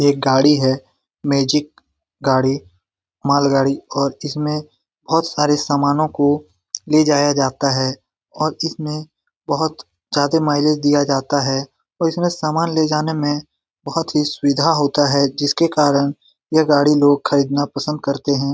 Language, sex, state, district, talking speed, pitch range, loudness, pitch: Hindi, male, Bihar, Lakhisarai, 145 wpm, 140-150 Hz, -18 LUFS, 145 Hz